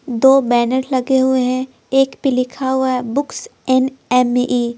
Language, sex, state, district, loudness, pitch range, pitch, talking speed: Hindi, female, Bihar, Patna, -16 LUFS, 250-265 Hz, 260 Hz, 175 wpm